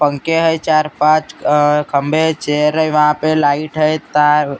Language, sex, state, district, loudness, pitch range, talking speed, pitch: Hindi, male, Maharashtra, Gondia, -14 LUFS, 150-155 Hz, 185 wpm, 150 Hz